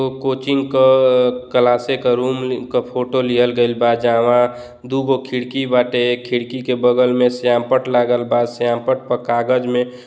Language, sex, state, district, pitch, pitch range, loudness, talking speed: Bhojpuri, male, Uttar Pradesh, Deoria, 125 Hz, 120-130 Hz, -17 LUFS, 155 wpm